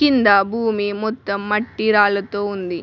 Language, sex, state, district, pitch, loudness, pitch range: Telugu, female, Telangana, Mahabubabad, 205 Hz, -18 LUFS, 200-220 Hz